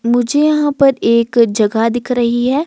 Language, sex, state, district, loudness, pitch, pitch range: Hindi, female, Himachal Pradesh, Shimla, -13 LUFS, 240 Hz, 235-275 Hz